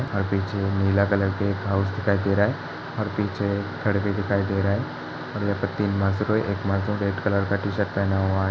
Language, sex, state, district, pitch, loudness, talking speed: Hindi, male, Uttar Pradesh, Hamirpur, 100 Hz, -24 LUFS, 240 wpm